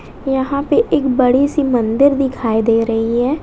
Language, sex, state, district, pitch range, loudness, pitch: Hindi, female, Bihar, West Champaran, 230-280 Hz, -15 LUFS, 260 Hz